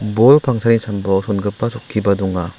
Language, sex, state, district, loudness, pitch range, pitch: Garo, male, Meghalaya, South Garo Hills, -16 LUFS, 100-115 Hz, 105 Hz